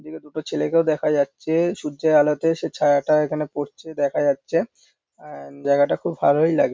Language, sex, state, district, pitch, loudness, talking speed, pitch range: Bengali, male, West Bengal, North 24 Parganas, 150 Hz, -21 LUFS, 170 wpm, 145-160 Hz